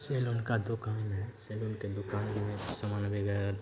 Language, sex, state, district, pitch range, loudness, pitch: Hindi, male, Bihar, Sitamarhi, 100-110 Hz, -35 LUFS, 105 Hz